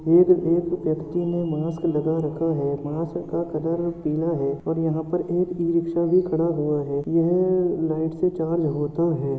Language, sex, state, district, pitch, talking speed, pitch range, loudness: Hindi, male, Uttar Pradesh, Muzaffarnagar, 165 Hz, 180 wpm, 155-170 Hz, -23 LUFS